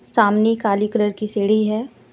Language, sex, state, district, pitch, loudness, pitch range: Hindi, female, Jharkhand, Deoghar, 215 Hz, -19 LUFS, 210-220 Hz